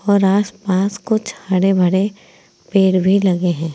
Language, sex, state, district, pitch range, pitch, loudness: Hindi, female, Uttar Pradesh, Saharanpur, 185-200 Hz, 195 Hz, -16 LUFS